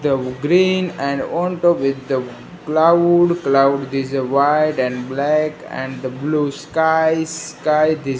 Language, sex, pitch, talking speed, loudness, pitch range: English, male, 150 Hz, 160 wpm, -18 LUFS, 135-160 Hz